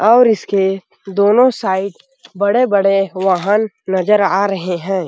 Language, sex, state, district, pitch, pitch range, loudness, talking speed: Hindi, male, Chhattisgarh, Sarguja, 200 Hz, 190-210 Hz, -15 LUFS, 120 wpm